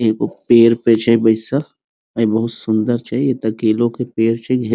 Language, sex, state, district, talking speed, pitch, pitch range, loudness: Maithili, male, Bihar, Muzaffarpur, 175 wpm, 115 Hz, 110-120 Hz, -16 LUFS